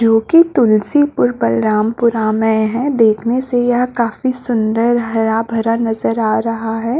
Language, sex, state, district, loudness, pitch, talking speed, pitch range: Hindi, female, Chhattisgarh, Balrampur, -15 LUFS, 225 Hz, 155 wpm, 220-245 Hz